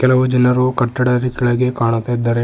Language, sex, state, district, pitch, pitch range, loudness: Kannada, male, Karnataka, Bidar, 125 Hz, 120-125 Hz, -16 LUFS